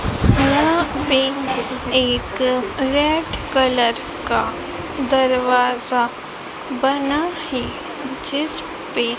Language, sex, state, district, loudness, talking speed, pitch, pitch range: Hindi, female, Madhya Pradesh, Dhar, -19 LUFS, 65 wpm, 265 Hz, 255-290 Hz